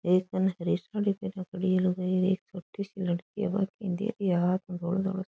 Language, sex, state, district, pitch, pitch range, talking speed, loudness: Rajasthani, female, Rajasthan, Churu, 185 Hz, 180-195 Hz, 205 wpm, -30 LUFS